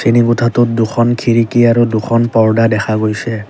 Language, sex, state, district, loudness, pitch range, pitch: Assamese, male, Assam, Kamrup Metropolitan, -12 LUFS, 110-120 Hz, 115 Hz